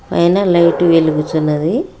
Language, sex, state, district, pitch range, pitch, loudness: Telugu, female, Telangana, Hyderabad, 155-170 Hz, 165 Hz, -13 LUFS